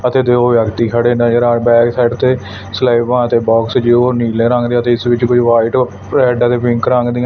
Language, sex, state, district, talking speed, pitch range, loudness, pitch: Punjabi, male, Punjab, Fazilka, 225 wpm, 115-125 Hz, -12 LUFS, 120 Hz